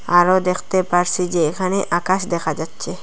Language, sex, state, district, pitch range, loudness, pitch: Bengali, female, Assam, Hailakandi, 170-185 Hz, -19 LUFS, 180 Hz